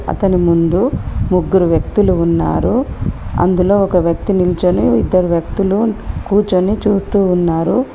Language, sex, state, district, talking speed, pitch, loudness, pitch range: Telugu, female, Telangana, Komaram Bheem, 105 wpm, 185 Hz, -14 LUFS, 175-200 Hz